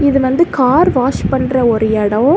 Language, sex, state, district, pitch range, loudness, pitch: Tamil, female, Tamil Nadu, Kanyakumari, 225-290 Hz, -13 LUFS, 260 Hz